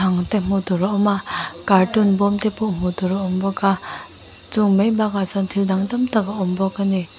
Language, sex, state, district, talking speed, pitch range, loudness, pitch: Mizo, female, Mizoram, Aizawl, 250 wpm, 190-205 Hz, -20 LUFS, 195 Hz